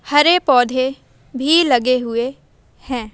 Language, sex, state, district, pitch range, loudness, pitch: Hindi, female, Madhya Pradesh, Umaria, 250-290 Hz, -16 LUFS, 260 Hz